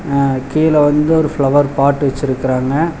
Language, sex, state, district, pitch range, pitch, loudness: Tamil, male, Tamil Nadu, Chennai, 135-155 Hz, 140 Hz, -14 LUFS